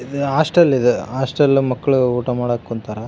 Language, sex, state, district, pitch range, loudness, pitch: Kannada, male, Karnataka, Raichur, 120-140 Hz, -17 LUFS, 130 Hz